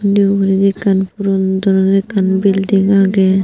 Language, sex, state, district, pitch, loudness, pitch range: Chakma, female, Tripura, Unakoti, 195 Hz, -13 LUFS, 190-195 Hz